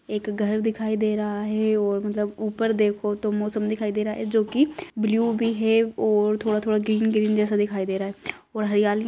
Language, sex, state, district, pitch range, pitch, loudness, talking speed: Hindi, female, Bihar, Jamui, 210-220 Hz, 215 Hz, -24 LUFS, 220 wpm